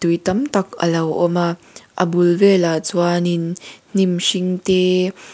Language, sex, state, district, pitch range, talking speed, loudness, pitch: Mizo, female, Mizoram, Aizawl, 175-185 Hz, 170 wpm, -18 LUFS, 180 Hz